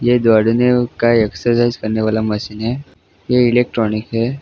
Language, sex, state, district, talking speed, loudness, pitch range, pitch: Hindi, male, Jharkhand, Jamtara, 150 wpm, -16 LUFS, 110-120 Hz, 115 Hz